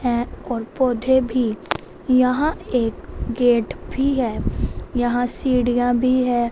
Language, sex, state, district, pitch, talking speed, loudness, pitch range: Hindi, female, Punjab, Fazilka, 245 Hz, 120 wpm, -21 LUFS, 240-255 Hz